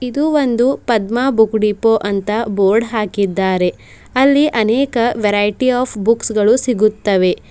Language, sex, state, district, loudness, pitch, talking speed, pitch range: Kannada, female, Karnataka, Bidar, -15 LUFS, 225 Hz, 110 wpm, 205-250 Hz